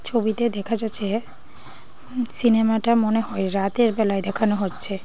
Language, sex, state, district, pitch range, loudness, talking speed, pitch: Bengali, female, Tripura, Dhalai, 200-230 Hz, -21 LUFS, 120 wpm, 220 Hz